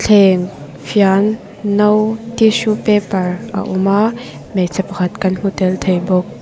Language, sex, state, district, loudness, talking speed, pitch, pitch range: Mizo, female, Mizoram, Aizawl, -15 LUFS, 140 wpm, 195 Hz, 185-215 Hz